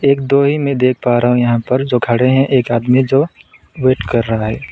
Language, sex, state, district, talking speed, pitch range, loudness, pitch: Hindi, male, West Bengal, Alipurduar, 240 wpm, 120-135 Hz, -14 LUFS, 125 Hz